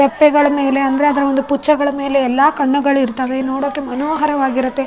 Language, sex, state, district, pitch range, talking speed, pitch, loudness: Kannada, female, Karnataka, Raichur, 270-290 Hz, 150 wpm, 280 Hz, -15 LUFS